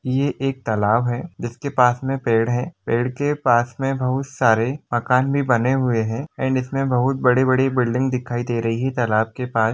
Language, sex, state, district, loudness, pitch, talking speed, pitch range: Hindi, male, Jharkhand, Jamtara, -20 LUFS, 125 Hz, 210 wpm, 120-135 Hz